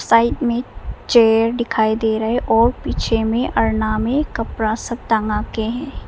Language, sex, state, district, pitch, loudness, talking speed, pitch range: Hindi, female, Arunachal Pradesh, Papum Pare, 225 Hz, -18 LUFS, 150 wpm, 220-240 Hz